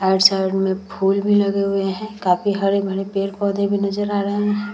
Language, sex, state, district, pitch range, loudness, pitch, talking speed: Hindi, female, Bihar, Vaishali, 195-205 Hz, -19 LUFS, 200 Hz, 190 wpm